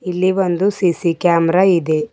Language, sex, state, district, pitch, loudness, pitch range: Kannada, female, Karnataka, Bidar, 180 Hz, -16 LUFS, 170-190 Hz